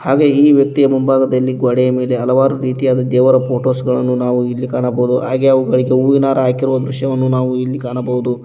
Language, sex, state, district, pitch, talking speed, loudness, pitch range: Kannada, male, Karnataka, Koppal, 130 Hz, 155 wpm, -14 LUFS, 125-135 Hz